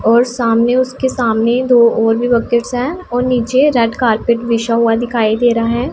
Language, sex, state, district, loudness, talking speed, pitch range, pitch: Hindi, female, Punjab, Pathankot, -14 LUFS, 190 wpm, 230-250 Hz, 235 Hz